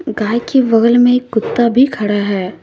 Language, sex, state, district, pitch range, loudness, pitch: Hindi, female, Jharkhand, Deoghar, 215-245 Hz, -13 LUFS, 235 Hz